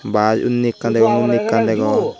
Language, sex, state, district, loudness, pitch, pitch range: Chakma, male, Tripura, Dhalai, -16 LUFS, 115 Hz, 110-120 Hz